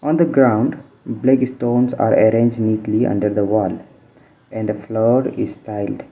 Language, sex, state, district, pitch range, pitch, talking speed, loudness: English, male, Mizoram, Aizawl, 110-130 Hz, 115 Hz, 155 wpm, -17 LUFS